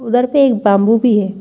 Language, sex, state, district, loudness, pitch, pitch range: Hindi, female, Chhattisgarh, Rajnandgaon, -13 LUFS, 225 Hz, 205-245 Hz